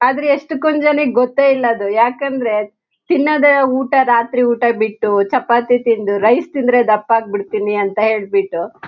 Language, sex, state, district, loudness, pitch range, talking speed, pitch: Kannada, female, Karnataka, Shimoga, -15 LUFS, 215-270 Hz, 140 wpm, 240 Hz